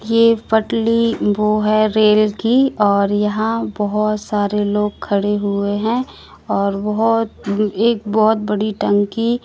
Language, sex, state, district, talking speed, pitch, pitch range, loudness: Hindi, female, Madhya Pradesh, Katni, 135 wpm, 215 Hz, 205-225 Hz, -17 LUFS